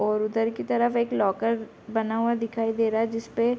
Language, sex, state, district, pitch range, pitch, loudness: Hindi, female, Bihar, Gopalganj, 220-230 Hz, 225 Hz, -26 LUFS